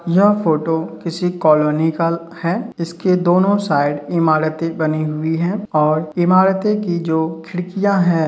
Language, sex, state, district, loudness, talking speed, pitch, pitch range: Hindi, male, Uttar Pradesh, Hamirpur, -17 LUFS, 145 wpm, 170 Hz, 160-185 Hz